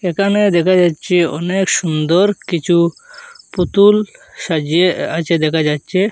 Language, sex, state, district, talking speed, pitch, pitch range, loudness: Bengali, male, Assam, Hailakandi, 120 wpm, 180 Hz, 165-200 Hz, -15 LUFS